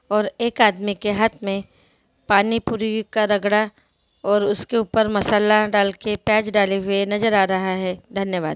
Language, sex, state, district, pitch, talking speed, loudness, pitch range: Hindi, female, Bihar, Sitamarhi, 205 Hz, 175 wpm, -20 LUFS, 200-220 Hz